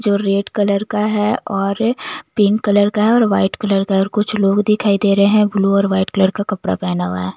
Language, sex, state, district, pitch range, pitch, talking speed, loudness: Hindi, female, Bihar, Patna, 195-210 Hz, 200 Hz, 250 wpm, -16 LUFS